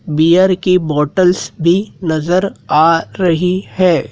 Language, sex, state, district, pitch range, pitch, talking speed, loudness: Hindi, male, Madhya Pradesh, Dhar, 165-185 Hz, 180 Hz, 115 wpm, -13 LUFS